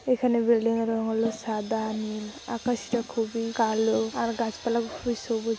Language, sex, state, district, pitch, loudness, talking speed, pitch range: Bengali, female, West Bengal, Dakshin Dinajpur, 230 Hz, -27 LUFS, 160 wpm, 220-235 Hz